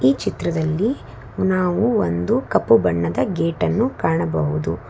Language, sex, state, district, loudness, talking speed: Kannada, female, Karnataka, Bangalore, -20 LUFS, 110 wpm